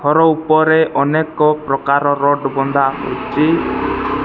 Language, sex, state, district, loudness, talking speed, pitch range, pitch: Odia, male, Odisha, Malkangiri, -15 LUFS, 70 wpm, 140-155 Hz, 145 Hz